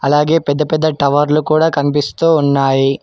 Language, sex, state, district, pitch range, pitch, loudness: Telugu, male, Telangana, Hyderabad, 140-155 Hz, 150 Hz, -14 LUFS